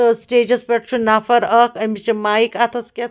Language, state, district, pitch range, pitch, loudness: Kashmiri, Punjab, Kapurthala, 225-240 Hz, 235 Hz, -16 LUFS